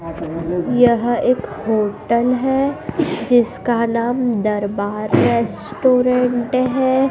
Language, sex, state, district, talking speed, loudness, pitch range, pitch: Hindi, female, Madhya Pradesh, Dhar, 75 wpm, -18 LUFS, 210-250 Hz, 235 Hz